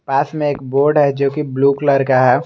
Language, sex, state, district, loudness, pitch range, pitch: Hindi, male, Jharkhand, Garhwa, -15 LUFS, 135-145 Hz, 140 Hz